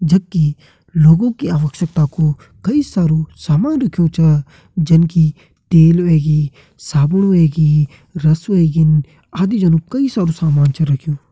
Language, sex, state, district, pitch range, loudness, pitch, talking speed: Kumaoni, male, Uttarakhand, Tehri Garhwal, 150-175 Hz, -14 LUFS, 160 Hz, 130 wpm